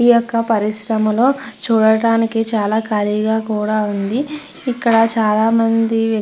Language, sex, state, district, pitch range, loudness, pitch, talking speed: Telugu, female, Andhra Pradesh, Krishna, 215-230 Hz, -16 LUFS, 225 Hz, 115 wpm